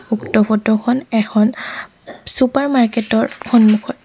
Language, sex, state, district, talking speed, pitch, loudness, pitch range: Assamese, female, Assam, Kamrup Metropolitan, 120 wpm, 225 Hz, -15 LUFS, 215-250 Hz